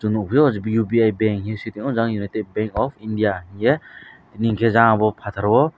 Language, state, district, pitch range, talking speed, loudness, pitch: Kokborok, Tripura, West Tripura, 105-115 Hz, 155 wpm, -20 LUFS, 110 Hz